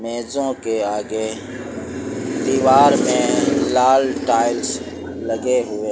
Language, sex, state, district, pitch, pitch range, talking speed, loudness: Hindi, male, Uttar Pradesh, Lucknow, 115 Hz, 110-130 Hz, 90 wpm, -18 LUFS